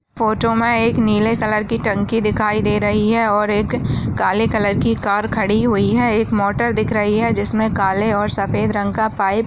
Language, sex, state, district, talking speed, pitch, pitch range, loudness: Hindi, female, Maharashtra, Nagpur, 210 wpm, 215 Hz, 205-225 Hz, -17 LUFS